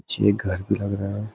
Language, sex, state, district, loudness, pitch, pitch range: Hindi, male, Uttarakhand, Uttarkashi, -24 LUFS, 100 Hz, 100-105 Hz